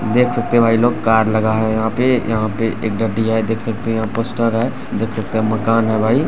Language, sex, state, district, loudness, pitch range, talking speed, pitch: Hindi, male, Bihar, Purnia, -17 LUFS, 110-115 Hz, 240 wpm, 115 Hz